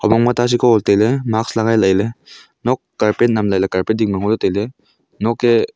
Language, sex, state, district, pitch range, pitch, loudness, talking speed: Wancho, male, Arunachal Pradesh, Longding, 100-115 Hz, 110 Hz, -16 LUFS, 175 wpm